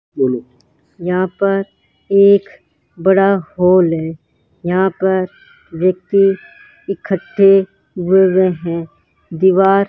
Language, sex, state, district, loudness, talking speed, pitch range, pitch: Hindi, male, Rajasthan, Bikaner, -15 LUFS, 95 wpm, 175-195 Hz, 190 Hz